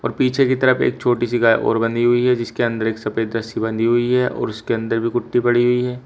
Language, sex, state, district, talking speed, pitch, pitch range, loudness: Hindi, male, Uttar Pradesh, Shamli, 265 wpm, 120 Hz, 115-125 Hz, -18 LUFS